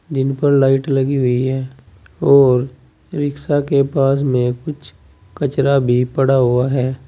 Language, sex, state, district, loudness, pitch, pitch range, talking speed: Hindi, male, Uttar Pradesh, Saharanpur, -16 LUFS, 135 Hz, 125-140 Hz, 145 wpm